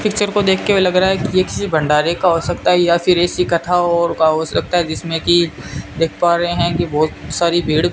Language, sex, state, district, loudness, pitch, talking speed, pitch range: Hindi, male, Rajasthan, Bikaner, -16 LUFS, 175 Hz, 255 wpm, 165-180 Hz